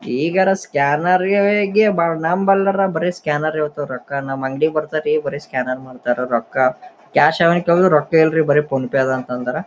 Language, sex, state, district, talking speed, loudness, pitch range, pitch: Kannada, male, Karnataka, Gulbarga, 160 wpm, -17 LUFS, 135-180 Hz, 155 Hz